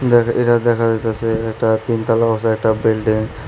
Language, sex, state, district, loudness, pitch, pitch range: Bengali, male, Tripura, West Tripura, -17 LUFS, 115 Hz, 110-115 Hz